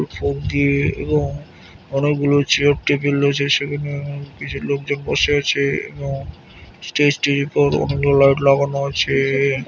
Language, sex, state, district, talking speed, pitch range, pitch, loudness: Bengali, male, West Bengal, Malda, 130 wpm, 140-145 Hz, 140 Hz, -18 LUFS